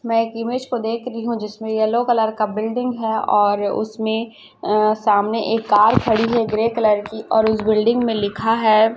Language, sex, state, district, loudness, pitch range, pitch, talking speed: Hindi, female, Chhattisgarh, Raipur, -19 LUFS, 215-230 Hz, 220 Hz, 200 wpm